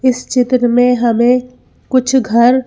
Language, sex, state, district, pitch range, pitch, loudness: Hindi, female, Madhya Pradesh, Bhopal, 245-255 Hz, 250 Hz, -13 LUFS